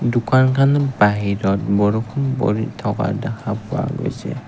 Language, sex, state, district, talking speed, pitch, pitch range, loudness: Assamese, male, Assam, Kamrup Metropolitan, 105 wpm, 115 Hz, 105-135 Hz, -19 LUFS